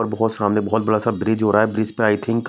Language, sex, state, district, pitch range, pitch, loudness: Hindi, male, Maharashtra, Mumbai Suburban, 105-110 Hz, 110 Hz, -19 LUFS